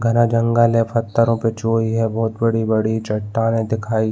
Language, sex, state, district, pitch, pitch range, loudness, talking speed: Hindi, male, Chhattisgarh, Balrampur, 115 Hz, 110-115 Hz, -18 LUFS, 175 wpm